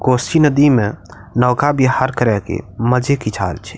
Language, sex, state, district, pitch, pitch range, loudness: Maithili, male, Bihar, Madhepura, 125 Hz, 105-130 Hz, -16 LUFS